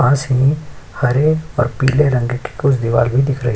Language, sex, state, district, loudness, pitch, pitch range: Hindi, male, Uttar Pradesh, Jyotiba Phule Nagar, -16 LUFS, 135 Hz, 125-140 Hz